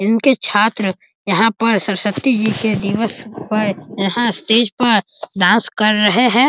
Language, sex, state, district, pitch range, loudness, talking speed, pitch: Hindi, male, Bihar, East Champaran, 205-230 Hz, -15 LUFS, 150 wpm, 220 Hz